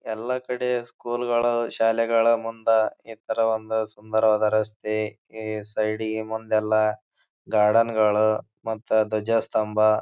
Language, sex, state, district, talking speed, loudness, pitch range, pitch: Kannada, male, Karnataka, Bijapur, 125 wpm, -24 LUFS, 110-115 Hz, 110 Hz